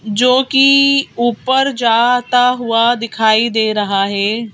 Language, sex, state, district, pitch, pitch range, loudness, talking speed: Hindi, female, Madhya Pradesh, Bhopal, 235 Hz, 220-250 Hz, -13 LUFS, 120 wpm